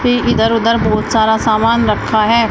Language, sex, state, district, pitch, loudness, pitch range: Hindi, female, Uttar Pradesh, Shamli, 225 Hz, -13 LUFS, 220-230 Hz